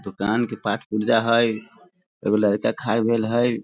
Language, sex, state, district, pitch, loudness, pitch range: Hindi, male, Bihar, Sitamarhi, 115 Hz, -22 LUFS, 105-115 Hz